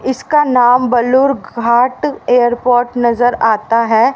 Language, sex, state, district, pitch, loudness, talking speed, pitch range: Hindi, female, Haryana, Rohtak, 245 Hz, -12 LUFS, 115 wpm, 235-255 Hz